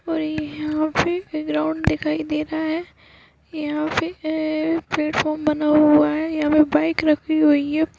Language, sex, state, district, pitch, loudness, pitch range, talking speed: Hindi, female, Uttarakhand, Uttarkashi, 310 Hz, -20 LUFS, 300-315 Hz, 180 wpm